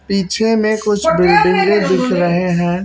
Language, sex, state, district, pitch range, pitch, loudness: Hindi, male, Chhattisgarh, Raipur, 175-210 Hz, 190 Hz, -14 LUFS